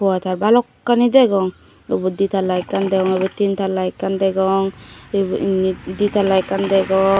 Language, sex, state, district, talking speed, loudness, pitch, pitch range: Chakma, female, Tripura, Dhalai, 165 wpm, -18 LUFS, 195 Hz, 190-195 Hz